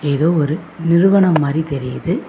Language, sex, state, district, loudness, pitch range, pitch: Tamil, female, Tamil Nadu, Namakkal, -16 LUFS, 145-180 Hz, 160 Hz